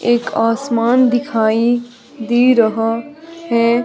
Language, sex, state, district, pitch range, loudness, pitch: Hindi, female, Himachal Pradesh, Shimla, 230-250 Hz, -15 LUFS, 240 Hz